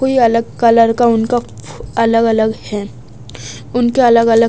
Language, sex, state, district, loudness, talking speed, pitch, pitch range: Hindi, female, Odisha, Nuapada, -13 LUFS, 160 wpm, 230 Hz, 215-235 Hz